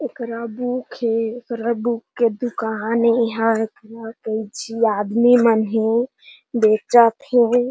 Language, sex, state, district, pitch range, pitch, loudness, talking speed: Chhattisgarhi, female, Chhattisgarh, Jashpur, 225-240 Hz, 230 Hz, -19 LUFS, 125 wpm